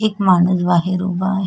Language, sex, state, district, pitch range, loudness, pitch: Marathi, female, Maharashtra, Sindhudurg, 180-190 Hz, -16 LUFS, 185 Hz